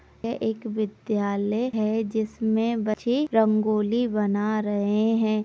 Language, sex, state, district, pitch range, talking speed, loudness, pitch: Hindi, female, Bihar, Purnia, 210-225 Hz, 110 wpm, -25 LUFS, 215 Hz